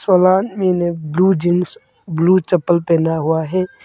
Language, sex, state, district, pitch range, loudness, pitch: Hindi, male, Arunachal Pradesh, Longding, 165-185 Hz, -16 LUFS, 180 Hz